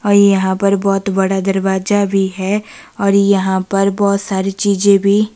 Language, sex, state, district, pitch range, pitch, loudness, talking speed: Hindi, female, Himachal Pradesh, Shimla, 195-200 Hz, 195 Hz, -14 LUFS, 170 wpm